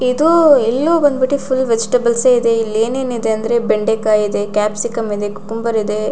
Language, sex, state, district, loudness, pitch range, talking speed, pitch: Kannada, female, Karnataka, Shimoga, -15 LUFS, 215-260 Hz, 165 wpm, 230 Hz